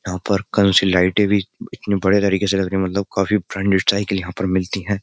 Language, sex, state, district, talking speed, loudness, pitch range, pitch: Hindi, male, Uttar Pradesh, Jyotiba Phule Nagar, 240 wpm, -18 LUFS, 95-100 Hz, 95 Hz